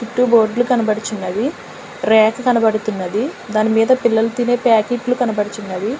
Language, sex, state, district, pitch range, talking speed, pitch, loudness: Telugu, female, Telangana, Hyderabad, 215-245 Hz, 100 wpm, 225 Hz, -17 LUFS